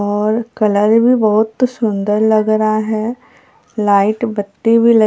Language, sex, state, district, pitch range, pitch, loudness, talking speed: Hindi, female, Bihar, Katihar, 210-230 Hz, 215 Hz, -14 LUFS, 140 wpm